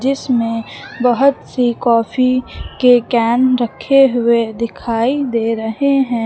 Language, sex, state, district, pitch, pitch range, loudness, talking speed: Hindi, female, Uttar Pradesh, Lucknow, 245 Hz, 230-255 Hz, -15 LUFS, 115 wpm